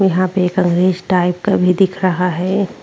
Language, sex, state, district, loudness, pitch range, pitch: Hindi, female, Uttar Pradesh, Jyotiba Phule Nagar, -15 LUFS, 180-190 Hz, 185 Hz